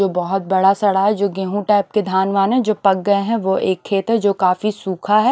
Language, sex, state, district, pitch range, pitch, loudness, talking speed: Hindi, female, Odisha, Nuapada, 190-210 Hz, 195 Hz, -17 LUFS, 270 wpm